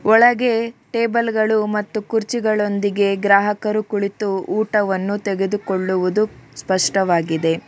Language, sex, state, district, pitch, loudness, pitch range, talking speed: Kannada, female, Karnataka, Bangalore, 205 Hz, -19 LUFS, 195-215 Hz, 70 wpm